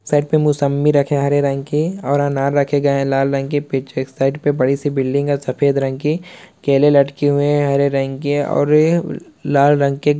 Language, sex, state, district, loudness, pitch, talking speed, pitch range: Hindi, male, Uttar Pradesh, Hamirpur, -17 LUFS, 140 Hz, 230 wpm, 140-145 Hz